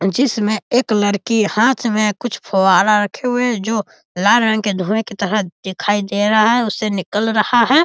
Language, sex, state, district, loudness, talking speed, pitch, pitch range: Hindi, male, Bihar, East Champaran, -16 LUFS, 190 wpm, 215 Hz, 205-235 Hz